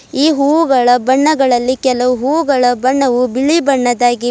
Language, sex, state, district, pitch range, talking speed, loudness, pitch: Kannada, female, Karnataka, Bidar, 250-280 Hz, 125 wpm, -12 LUFS, 260 Hz